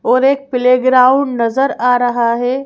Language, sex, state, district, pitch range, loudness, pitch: Hindi, female, Madhya Pradesh, Bhopal, 245-270 Hz, -13 LUFS, 250 Hz